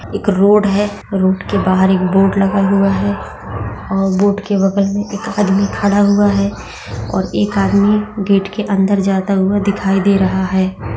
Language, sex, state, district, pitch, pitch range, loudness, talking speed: Hindi, female, Bihar, Bhagalpur, 195 Hz, 190-205 Hz, -14 LUFS, 185 wpm